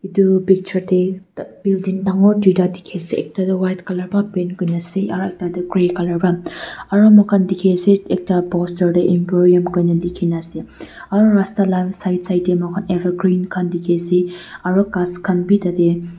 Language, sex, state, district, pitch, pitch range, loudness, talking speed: Nagamese, female, Nagaland, Dimapur, 185 Hz, 180-190 Hz, -17 LUFS, 195 wpm